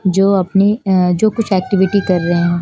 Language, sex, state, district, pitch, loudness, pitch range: Hindi, female, Chandigarh, Chandigarh, 190 Hz, -14 LUFS, 180-200 Hz